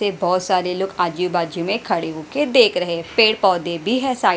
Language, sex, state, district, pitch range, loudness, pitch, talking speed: Hindi, female, Haryana, Jhajjar, 175-220 Hz, -19 LUFS, 185 Hz, 245 wpm